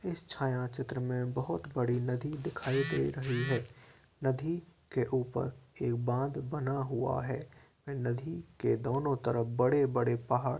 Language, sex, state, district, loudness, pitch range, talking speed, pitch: Hindi, male, Uttar Pradesh, Varanasi, -34 LUFS, 125-140 Hz, 155 wpm, 130 Hz